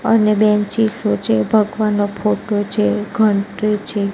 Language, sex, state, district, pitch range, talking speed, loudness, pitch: Gujarati, female, Gujarat, Gandhinagar, 200-215 Hz, 115 wpm, -17 LUFS, 210 Hz